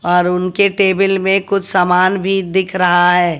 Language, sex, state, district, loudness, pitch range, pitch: Hindi, female, Haryana, Jhajjar, -14 LUFS, 180-195 Hz, 190 Hz